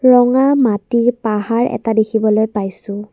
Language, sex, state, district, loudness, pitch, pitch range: Assamese, female, Assam, Kamrup Metropolitan, -15 LUFS, 225 Hz, 210-245 Hz